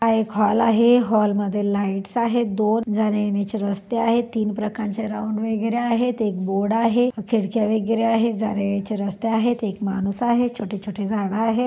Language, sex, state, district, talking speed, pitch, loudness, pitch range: Marathi, female, Maharashtra, Pune, 170 wpm, 220 Hz, -21 LUFS, 205-230 Hz